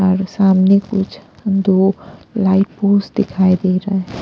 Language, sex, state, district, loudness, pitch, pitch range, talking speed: Hindi, female, Punjab, Pathankot, -15 LUFS, 195 Hz, 190-200 Hz, 140 wpm